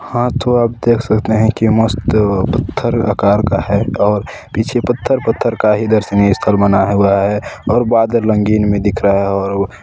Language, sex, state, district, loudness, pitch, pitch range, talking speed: Hindi, male, Chhattisgarh, Balrampur, -14 LUFS, 110 Hz, 100-115 Hz, 190 wpm